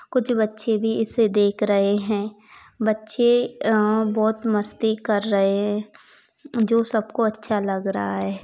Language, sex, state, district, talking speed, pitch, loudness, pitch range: Hindi, female, Bihar, Saran, 135 wpm, 215 Hz, -22 LUFS, 205-225 Hz